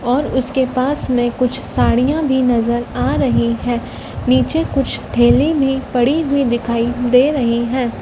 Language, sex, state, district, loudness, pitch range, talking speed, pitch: Hindi, female, Madhya Pradesh, Dhar, -16 LUFS, 240-270 Hz, 155 wpm, 250 Hz